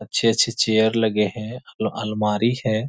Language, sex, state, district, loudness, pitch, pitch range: Hindi, male, Bihar, East Champaran, -21 LUFS, 110 Hz, 110-115 Hz